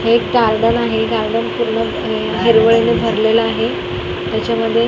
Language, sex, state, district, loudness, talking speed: Marathi, female, Maharashtra, Mumbai Suburban, -15 LUFS, 135 wpm